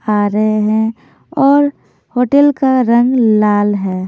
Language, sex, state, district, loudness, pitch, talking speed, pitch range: Hindi, female, Himachal Pradesh, Shimla, -13 LUFS, 220 Hz, 115 wpm, 210-260 Hz